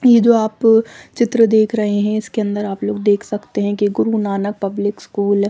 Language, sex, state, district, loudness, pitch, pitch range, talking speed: Hindi, female, Chandigarh, Chandigarh, -17 LUFS, 210 Hz, 205-225 Hz, 205 wpm